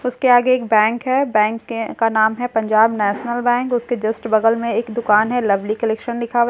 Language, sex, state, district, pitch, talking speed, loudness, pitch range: Hindi, female, Bihar, Katihar, 230 Hz, 260 wpm, -17 LUFS, 220-245 Hz